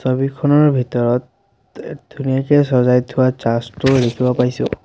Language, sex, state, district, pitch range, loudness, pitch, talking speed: Assamese, male, Assam, Sonitpur, 125-135 Hz, -16 LUFS, 130 Hz, 110 wpm